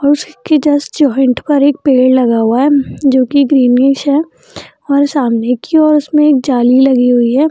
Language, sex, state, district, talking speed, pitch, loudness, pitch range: Hindi, female, Bihar, Jamui, 190 wpm, 280 Hz, -11 LUFS, 255-290 Hz